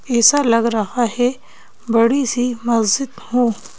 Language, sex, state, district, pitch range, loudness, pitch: Hindi, female, Madhya Pradesh, Bhopal, 230-250 Hz, -17 LUFS, 240 Hz